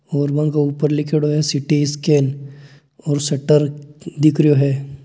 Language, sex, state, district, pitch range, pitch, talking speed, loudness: Marwari, male, Rajasthan, Nagaur, 140-150 Hz, 145 Hz, 140 wpm, -17 LUFS